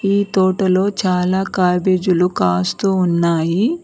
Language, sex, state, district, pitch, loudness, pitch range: Telugu, female, Telangana, Mahabubabad, 185 Hz, -16 LUFS, 180-195 Hz